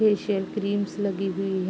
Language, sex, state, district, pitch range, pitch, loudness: Hindi, female, Uttar Pradesh, Jalaun, 190-205 Hz, 200 Hz, -26 LUFS